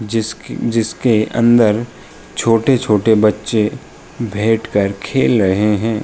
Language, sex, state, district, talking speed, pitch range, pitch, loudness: Hindi, male, Uttar Pradesh, Jalaun, 100 wpm, 105-115 Hz, 110 Hz, -15 LUFS